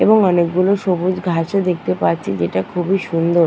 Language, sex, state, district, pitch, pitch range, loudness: Bengali, female, West Bengal, Purulia, 175 Hz, 165-185 Hz, -17 LUFS